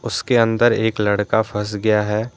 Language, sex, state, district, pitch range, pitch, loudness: Hindi, male, Jharkhand, Deoghar, 105-115 Hz, 110 Hz, -18 LUFS